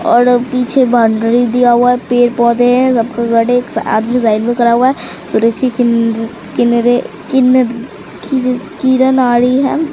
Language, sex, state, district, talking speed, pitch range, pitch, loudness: Hindi, female, Bihar, Katihar, 90 wpm, 235-255 Hz, 245 Hz, -12 LUFS